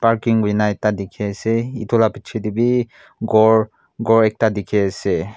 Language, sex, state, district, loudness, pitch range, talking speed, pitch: Nagamese, male, Nagaland, Kohima, -18 LUFS, 105-115 Hz, 145 wpm, 110 Hz